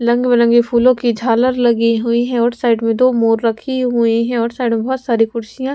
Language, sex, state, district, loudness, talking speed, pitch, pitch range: Hindi, female, Punjab, Pathankot, -15 LUFS, 240 wpm, 235 Hz, 230-250 Hz